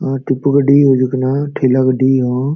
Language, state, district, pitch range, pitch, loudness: Santali, Jharkhand, Sahebganj, 130-140 Hz, 135 Hz, -13 LUFS